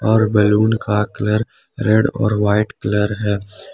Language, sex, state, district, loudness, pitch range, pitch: Hindi, male, Jharkhand, Palamu, -17 LUFS, 105-110 Hz, 105 Hz